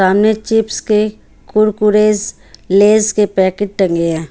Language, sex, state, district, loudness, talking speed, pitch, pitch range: Hindi, female, Haryana, Charkhi Dadri, -13 LUFS, 125 wpm, 210 Hz, 190-215 Hz